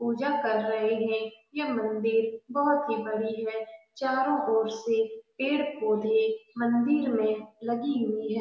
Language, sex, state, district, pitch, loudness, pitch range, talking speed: Hindi, female, Bihar, Saran, 225 Hz, -28 LUFS, 220-260 Hz, 145 wpm